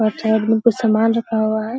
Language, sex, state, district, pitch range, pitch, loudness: Hindi, female, Bihar, Araria, 220-230 Hz, 220 Hz, -17 LUFS